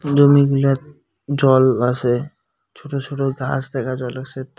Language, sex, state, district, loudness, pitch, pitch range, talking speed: Bengali, male, West Bengal, Cooch Behar, -18 LUFS, 135 Hz, 130-140 Hz, 120 wpm